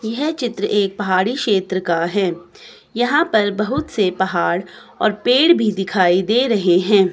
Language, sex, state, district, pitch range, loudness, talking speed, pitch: Hindi, female, Himachal Pradesh, Shimla, 185-225 Hz, -17 LUFS, 160 wpm, 205 Hz